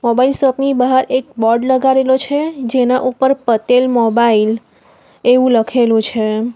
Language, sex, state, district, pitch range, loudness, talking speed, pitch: Gujarati, female, Gujarat, Valsad, 230-260 Hz, -14 LUFS, 135 wpm, 250 Hz